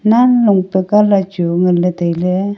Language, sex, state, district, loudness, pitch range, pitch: Wancho, female, Arunachal Pradesh, Longding, -13 LUFS, 180-210 Hz, 190 Hz